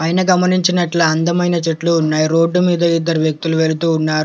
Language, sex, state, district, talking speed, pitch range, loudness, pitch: Telugu, male, Telangana, Komaram Bheem, 155 wpm, 160-175 Hz, -15 LUFS, 165 Hz